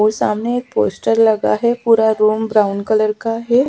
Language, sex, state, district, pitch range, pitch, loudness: Hindi, female, Chhattisgarh, Raipur, 215-230 Hz, 220 Hz, -16 LUFS